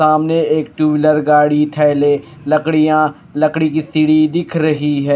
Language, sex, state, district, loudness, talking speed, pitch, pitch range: Hindi, male, Punjab, Kapurthala, -14 LUFS, 150 wpm, 155 Hz, 150-155 Hz